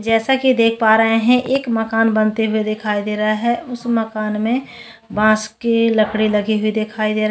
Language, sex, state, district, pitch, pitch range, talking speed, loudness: Hindi, female, Chhattisgarh, Bastar, 220 Hz, 215-230 Hz, 215 wpm, -17 LUFS